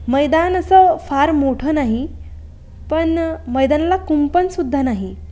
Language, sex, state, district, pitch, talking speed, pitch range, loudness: Marathi, female, Maharashtra, Aurangabad, 290 Hz, 115 wpm, 245-330 Hz, -16 LUFS